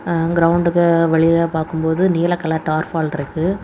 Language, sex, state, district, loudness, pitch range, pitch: Tamil, female, Tamil Nadu, Kanyakumari, -17 LUFS, 160-170 Hz, 165 Hz